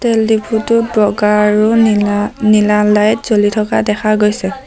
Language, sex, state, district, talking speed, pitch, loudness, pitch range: Assamese, female, Assam, Sonitpur, 130 wpm, 215 Hz, -12 LUFS, 210-220 Hz